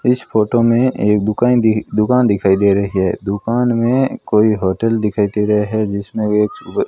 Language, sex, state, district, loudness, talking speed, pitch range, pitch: Hindi, male, Rajasthan, Bikaner, -15 LUFS, 185 wpm, 105-115 Hz, 105 Hz